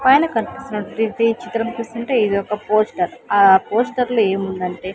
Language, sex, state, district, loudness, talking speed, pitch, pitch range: Telugu, female, Andhra Pradesh, Sri Satya Sai, -18 LUFS, 120 wpm, 225 Hz, 200-235 Hz